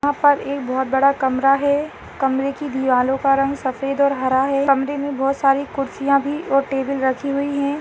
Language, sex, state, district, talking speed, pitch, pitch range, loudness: Hindi, female, Uttar Pradesh, Ghazipur, 205 wpm, 275 Hz, 270-280 Hz, -19 LUFS